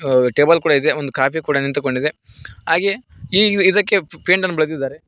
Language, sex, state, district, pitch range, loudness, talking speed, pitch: Kannada, male, Karnataka, Koppal, 135-185 Hz, -16 LUFS, 165 wpm, 155 Hz